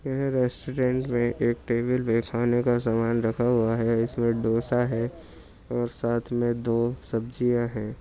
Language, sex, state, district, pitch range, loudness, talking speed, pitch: Hindi, male, Uttar Pradesh, Jyotiba Phule Nagar, 115-125 Hz, -26 LUFS, 155 wpm, 120 Hz